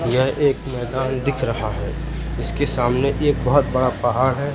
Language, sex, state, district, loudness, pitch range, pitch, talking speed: Hindi, male, Madhya Pradesh, Katni, -21 LUFS, 125-145 Hz, 130 Hz, 170 wpm